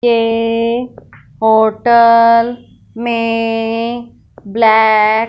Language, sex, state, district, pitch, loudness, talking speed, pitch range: Hindi, female, Punjab, Fazilka, 230 Hz, -12 LUFS, 55 wpm, 220-235 Hz